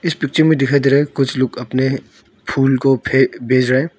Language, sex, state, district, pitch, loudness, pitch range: Hindi, female, Arunachal Pradesh, Longding, 135 Hz, -16 LUFS, 130-140 Hz